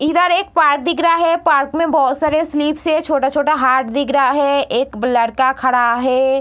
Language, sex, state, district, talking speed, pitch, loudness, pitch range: Hindi, female, Bihar, Araria, 195 wpm, 285 Hz, -15 LUFS, 260-315 Hz